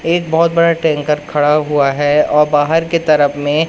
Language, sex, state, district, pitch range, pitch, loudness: Hindi, male, Madhya Pradesh, Katni, 145-165 Hz, 150 Hz, -13 LUFS